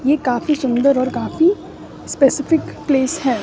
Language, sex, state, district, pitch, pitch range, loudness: Hindi, female, Bihar, West Champaran, 275 Hz, 255-305 Hz, -17 LUFS